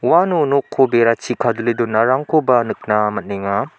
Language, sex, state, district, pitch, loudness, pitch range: Garo, male, Meghalaya, South Garo Hills, 120 Hz, -17 LUFS, 110-130 Hz